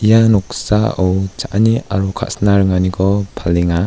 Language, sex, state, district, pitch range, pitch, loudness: Garo, male, Meghalaya, West Garo Hills, 95-110 Hz, 100 Hz, -15 LUFS